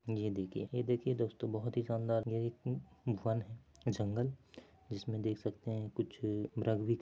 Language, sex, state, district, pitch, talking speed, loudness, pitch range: Hindi, male, Chhattisgarh, Bilaspur, 115 Hz, 160 wpm, -38 LUFS, 105-120 Hz